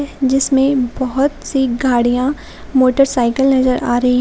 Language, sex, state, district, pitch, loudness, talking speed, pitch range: Hindi, female, Jharkhand, Palamu, 260 Hz, -15 LUFS, 115 wpm, 250-270 Hz